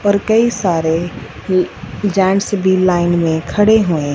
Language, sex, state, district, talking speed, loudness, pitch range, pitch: Hindi, female, Punjab, Fazilka, 145 wpm, -15 LUFS, 175-205 Hz, 185 Hz